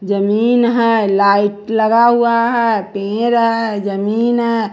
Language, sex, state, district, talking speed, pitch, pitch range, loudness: Hindi, female, Bihar, West Champaran, 125 wpm, 225 Hz, 205-235 Hz, -14 LUFS